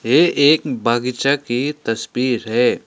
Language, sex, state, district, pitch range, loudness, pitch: Hindi, male, Sikkim, Gangtok, 120-145 Hz, -17 LUFS, 125 Hz